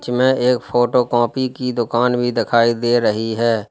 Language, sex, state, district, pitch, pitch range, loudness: Hindi, male, Uttar Pradesh, Lalitpur, 120 Hz, 115-125 Hz, -17 LUFS